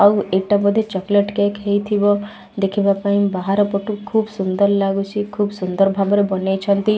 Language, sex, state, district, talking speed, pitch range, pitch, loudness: Odia, female, Odisha, Malkangiri, 170 wpm, 195-205 Hz, 200 Hz, -18 LUFS